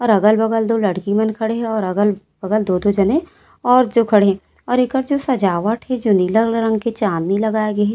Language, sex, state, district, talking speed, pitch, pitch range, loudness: Chhattisgarhi, female, Chhattisgarh, Raigarh, 210 wpm, 220 Hz, 205-230 Hz, -17 LUFS